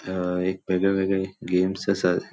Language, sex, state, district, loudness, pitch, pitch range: Konkani, male, Goa, North and South Goa, -24 LUFS, 95 Hz, 90-95 Hz